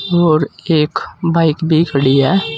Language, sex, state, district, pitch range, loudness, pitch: Hindi, male, Uttar Pradesh, Saharanpur, 140-170 Hz, -14 LUFS, 155 Hz